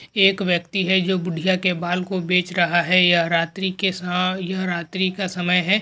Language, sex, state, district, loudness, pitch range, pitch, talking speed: Hindi, male, Maharashtra, Dhule, -20 LUFS, 175-190 Hz, 185 Hz, 205 wpm